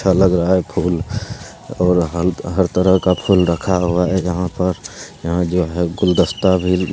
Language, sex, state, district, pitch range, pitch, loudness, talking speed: Hindi, male, Bihar, Lakhisarai, 85-95 Hz, 90 Hz, -17 LUFS, 190 wpm